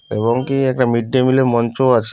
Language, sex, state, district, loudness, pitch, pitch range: Bengali, male, West Bengal, Purulia, -16 LUFS, 125 Hz, 115-130 Hz